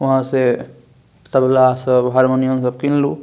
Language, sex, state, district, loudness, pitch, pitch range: Maithili, male, Bihar, Saharsa, -16 LUFS, 130 Hz, 130-135 Hz